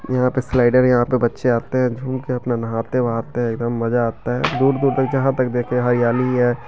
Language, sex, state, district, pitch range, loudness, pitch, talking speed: Maithili, male, Bihar, Begusarai, 120-130 Hz, -19 LUFS, 125 Hz, 225 wpm